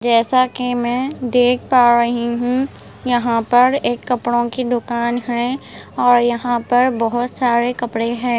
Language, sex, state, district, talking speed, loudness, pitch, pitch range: Hindi, female, Punjab, Pathankot, 150 wpm, -17 LUFS, 245 Hz, 240-250 Hz